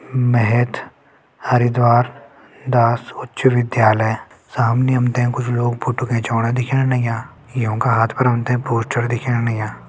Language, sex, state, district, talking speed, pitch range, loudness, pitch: Garhwali, male, Uttarakhand, Uttarkashi, 125 wpm, 115-125 Hz, -18 LUFS, 120 Hz